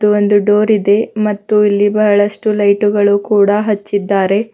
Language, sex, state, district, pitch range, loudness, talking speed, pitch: Kannada, female, Karnataka, Bidar, 205-210 Hz, -13 LUFS, 130 wpm, 205 Hz